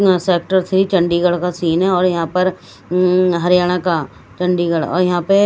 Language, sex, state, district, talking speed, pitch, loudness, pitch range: Hindi, female, Chandigarh, Chandigarh, 185 wpm, 180 Hz, -16 LUFS, 175-185 Hz